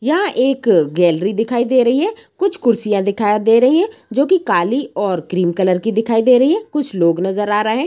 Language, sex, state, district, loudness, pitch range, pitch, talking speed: Hindi, female, Bihar, Gopalganj, -15 LUFS, 200-280 Hz, 230 Hz, 230 wpm